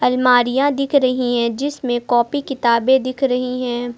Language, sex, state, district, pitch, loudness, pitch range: Hindi, female, Uttar Pradesh, Lucknow, 250 Hz, -17 LUFS, 240-270 Hz